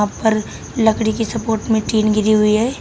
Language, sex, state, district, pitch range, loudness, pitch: Hindi, female, Uttar Pradesh, Shamli, 215-225 Hz, -17 LUFS, 220 Hz